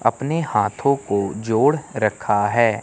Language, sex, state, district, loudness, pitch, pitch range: Hindi, male, Chandigarh, Chandigarh, -20 LUFS, 110 Hz, 105-140 Hz